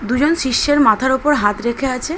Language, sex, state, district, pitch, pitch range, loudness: Bengali, female, West Bengal, Dakshin Dinajpur, 260 Hz, 235-290 Hz, -15 LUFS